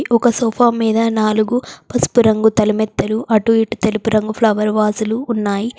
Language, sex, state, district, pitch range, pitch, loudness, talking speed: Telugu, female, Telangana, Komaram Bheem, 215-230 Hz, 220 Hz, -16 LUFS, 145 wpm